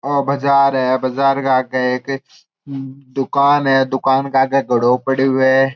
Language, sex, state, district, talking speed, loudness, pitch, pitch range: Marwari, male, Rajasthan, Churu, 165 wpm, -16 LUFS, 135 Hz, 130-135 Hz